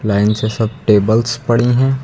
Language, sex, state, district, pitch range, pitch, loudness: Hindi, male, Uttar Pradesh, Lucknow, 105-120 Hz, 115 Hz, -15 LUFS